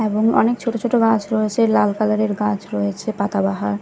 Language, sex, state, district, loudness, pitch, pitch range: Bengali, female, Odisha, Khordha, -19 LUFS, 215 Hz, 200-225 Hz